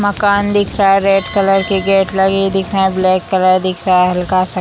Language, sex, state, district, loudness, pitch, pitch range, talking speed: Hindi, female, Bihar, Samastipur, -13 LUFS, 195 Hz, 185-195 Hz, 235 wpm